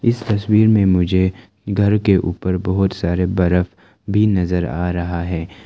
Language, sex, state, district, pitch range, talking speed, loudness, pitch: Hindi, male, Arunachal Pradesh, Lower Dibang Valley, 90-105 Hz, 160 wpm, -18 LUFS, 95 Hz